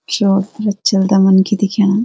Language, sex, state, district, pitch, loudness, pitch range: Garhwali, female, Uttarakhand, Uttarkashi, 200 Hz, -14 LUFS, 195-205 Hz